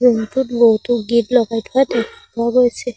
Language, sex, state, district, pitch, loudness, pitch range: Assamese, female, Assam, Sonitpur, 240 Hz, -16 LUFS, 230-250 Hz